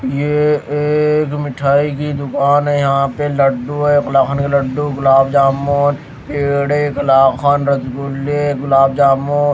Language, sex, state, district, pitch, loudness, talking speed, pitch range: Hindi, male, Himachal Pradesh, Shimla, 140 Hz, -14 LUFS, 130 wpm, 135-145 Hz